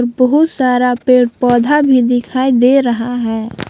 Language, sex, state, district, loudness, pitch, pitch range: Hindi, female, Jharkhand, Palamu, -12 LUFS, 250 Hz, 240-260 Hz